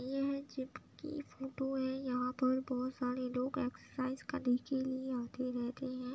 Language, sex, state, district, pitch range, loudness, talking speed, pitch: Hindi, female, Uttar Pradesh, Budaun, 250-265 Hz, -38 LUFS, 175 wpm, 260 Hz